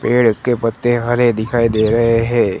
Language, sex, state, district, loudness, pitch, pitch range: Hindi, male, Gujarat, Gandhinagar, -15 LUFS, 115 Hz, 115-120 Hz